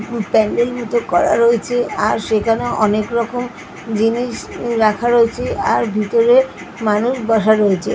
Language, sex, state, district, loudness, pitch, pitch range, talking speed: Bengali, female, West Bengal, Paschim Medinipur, -16 LUFS, 230 Hz, 215-240 Hz, 130 wpm